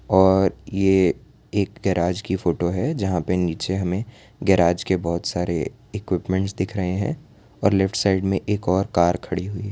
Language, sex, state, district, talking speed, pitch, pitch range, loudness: Hindi, male, Gujarat, Valsad, 180 wpm, 95 Hz, 90-100 Hz, -22 LUFS